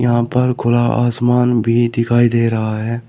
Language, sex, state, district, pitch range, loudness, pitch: Hindi, male, Uttar Pradesh, Shamli, 115-120 Hz, -15 LUFS, 120 Hz